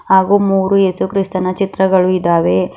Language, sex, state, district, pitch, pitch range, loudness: Kannada, female, Karnataka, Bidar, 190 Hz, 185-195 Hz, -14 LUFS